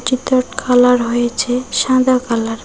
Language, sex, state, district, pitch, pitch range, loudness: Bengali, female, West Bengal, Cooch Behar, 250 Hz, 240-255 Hz, -15 LUFS